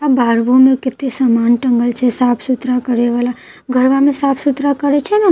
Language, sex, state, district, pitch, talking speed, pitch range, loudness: Maithili, female, Bihar, Katihar, 255 Hz, 235 wpm, 245-275 Hz, -14 LUFS